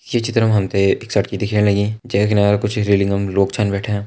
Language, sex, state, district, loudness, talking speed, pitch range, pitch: Hindi, male, Uttarakhand, Tehri Garhwal, -17 LUFS, 235 wpm, 100-105 Hz, 105 Hz